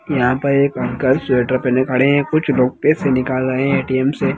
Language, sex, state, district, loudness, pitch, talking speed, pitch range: Hindi, male, Bihar, Jahanabad, -16 LUFS, 130 Hz, 220 wpm, 130-140 Hz